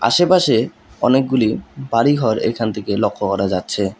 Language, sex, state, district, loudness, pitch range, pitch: Bengali, male, West Bengal, Alipurduar, -17 LUFS, 100-135 Hz, 115 Hz